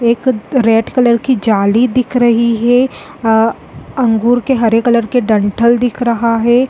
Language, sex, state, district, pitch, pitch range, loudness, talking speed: Hindi, female, Chhattisgarh, Balrampur, 235 Hz, 225-250 Hz, -12 LUFS, 160 wpm